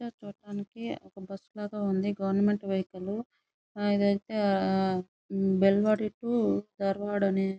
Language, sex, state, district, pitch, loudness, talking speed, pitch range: Telugu, female, Andhra Pradesh, Chittoor, 200 Hz, -29 LUFS, 125 wpm, 195-210 Hz